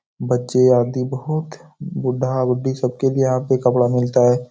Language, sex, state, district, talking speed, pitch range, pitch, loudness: Hindi, male, Bihar, Jahanabad, 145 wpm, 125-135 Hz, 130 Hz, -19 LUFS